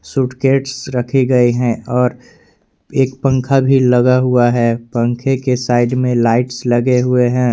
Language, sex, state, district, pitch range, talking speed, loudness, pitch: Hindi, male, Jharkhand, Garhwa, 120-130 Hz, 150 wpm, -14 LUFS, 125 Hz